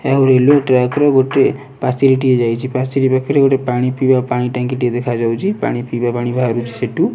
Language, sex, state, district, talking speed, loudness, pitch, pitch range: Odia, male, Odisha, Nuapada, 175 wpm, -15 LUFS, 130 Hz, 125-135 Hz